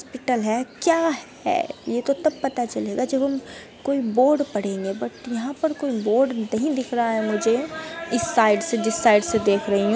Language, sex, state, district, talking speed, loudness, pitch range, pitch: Hindi, female, Uttar Pradesh, Hamirpur, 210 wpm, -22 LUFS, 220-280 Hz, 245 Hz